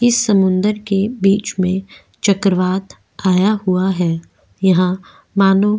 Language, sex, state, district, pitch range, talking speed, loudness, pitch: Hindi, female, Goa, North and South Goa, 185-205 Hz, 125 wpm, -16 LUFS, 195 Hz